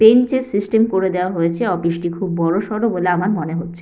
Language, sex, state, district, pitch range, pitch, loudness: Bengali, female, West Bengal, Jhargram, 170-220 Hz, 185 Hz, -18 LUFS